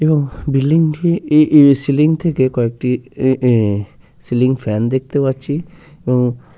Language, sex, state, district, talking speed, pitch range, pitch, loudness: Bengali, male, West Bengal, Purulia, 135 wpm, 125-155 Hz, 135 Hz, -15 LUFS